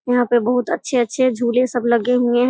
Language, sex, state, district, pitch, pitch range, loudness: Hindi, female, Bihar, Muzaffarpur, 245 Hz, 240-250 Hz, -18 LUFS